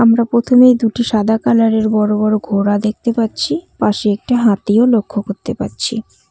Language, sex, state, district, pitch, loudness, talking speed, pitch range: Bengali, female, West Bengal, Cooch Behar, 225 Hz, -14 LUFS, 150 wpm, 210-235 Hz